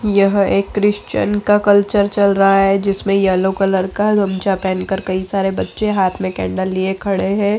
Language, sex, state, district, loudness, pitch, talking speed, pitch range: Hindi, female, Bihar, Saharsa, -16 LUFS, 195 Hz, 190 wpm, 190-205 Hz